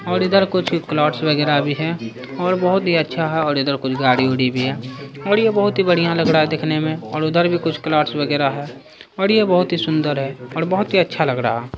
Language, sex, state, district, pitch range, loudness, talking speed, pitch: Hindi, male, Bihar, Saharsa, 140-175 Hz, -18 LUFS, 255 wpm, 155 Hz